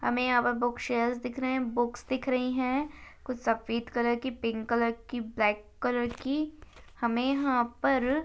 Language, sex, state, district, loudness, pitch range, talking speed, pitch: Hindi, female, Chhattisgarh, Rajnandgaon, -30 LUFS, 235-260 Hz, 190 wpm, 245 Hz